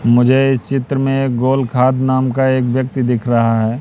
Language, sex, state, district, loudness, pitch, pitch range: Hindi, male, Madhya Pradesh, Katni, -15 LUFS, 130 Hz, 120-135 Hz